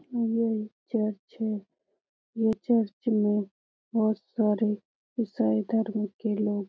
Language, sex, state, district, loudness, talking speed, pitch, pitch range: Hindi, female, Bihar, Lakhisarai, -28 LUFS, 115 wpm, 215 Hz, 210-225 Hz